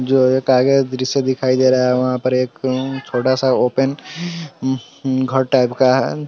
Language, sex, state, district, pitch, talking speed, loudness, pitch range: Hindi, male, Bihar, Sitamarhi, 130 Hz, 200 wpm, -17 LUFS, 130-135 Hz